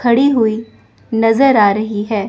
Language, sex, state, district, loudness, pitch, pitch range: Hindi, female, Chandigarh, Chandigarh, -13 LUFS, 225 Hz, 210-240 Hz